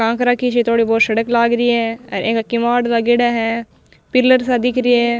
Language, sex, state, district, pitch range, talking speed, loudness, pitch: Rajasthani, female, Rajasthan, Nagaur, 230-245 Hz, 220 wpm, -16 LUFS, 235 Hz